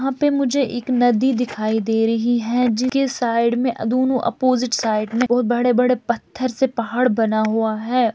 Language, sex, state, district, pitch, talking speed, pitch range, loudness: Hindi, female, Chhattisgarh, Bilaspur, 245 Hz, 175 wpm, 230-255 Hz, -19 LUFS